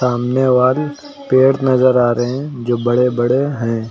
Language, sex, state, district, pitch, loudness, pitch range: Hindi, male, Uttar Pradesh, Lucknow, 125 Hz, -15 LUFS, 120-135 Hz